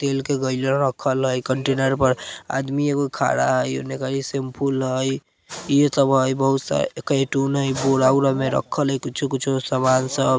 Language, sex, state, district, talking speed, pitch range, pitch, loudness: Bajjika, male, Bihar, Vaishali, 165 wpm, 130-140 Hz, 135 Hz, -21 LUFS